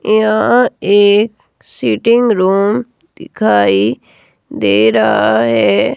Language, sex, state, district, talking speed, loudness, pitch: Hindi, female, Himachal Pradesh, Shimla, 80 wpm, -12 LUFS, 200 Hz